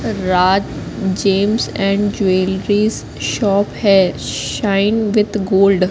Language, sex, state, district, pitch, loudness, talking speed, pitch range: Hindi, female, Madhya Pradesh, Katni, 195 Hz, -16 LUFS, 100 wpm, 190-205 Hz